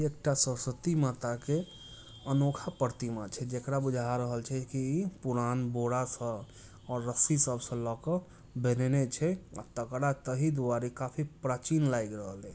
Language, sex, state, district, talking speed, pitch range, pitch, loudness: Hindi, male, Bihar, Muzaffarpur, 135 wpm, 120-140 Hz, 130 Hz, -32 LUFS